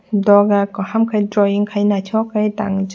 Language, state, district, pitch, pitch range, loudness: Kokborok, Tripura, West Tripura, 205 Hz, 200-210 Hz, -16 LUFS